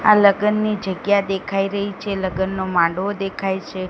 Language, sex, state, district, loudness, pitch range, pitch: Gujarati, female, Gujarat, Gandhinagar, -20 LUFS, 190-205 Hz, 195 Hz